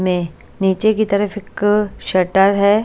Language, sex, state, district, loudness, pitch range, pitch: Hindi, female, Chhattisgarh, Raipur, -17 LUFS, 190-210 Hz, 200 Hz